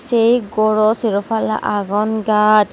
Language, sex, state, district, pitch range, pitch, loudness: Chakma, female, Tripura, West Tripura, 210-225 Hz, 215 Hz, -16 LUFS